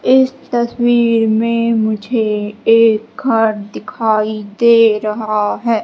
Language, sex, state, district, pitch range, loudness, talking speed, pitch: Hindi, female, Madhya Pradesh, Katni, 215-235 Hz, -14 LUFS, 105 wpm, 225 Hz